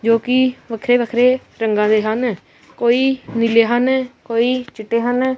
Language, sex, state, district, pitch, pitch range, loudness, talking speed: Punjabi, female, Punjab, Kapurthala, 240 Hz, 230-255 Hz, -17 LUFS, 145 wpm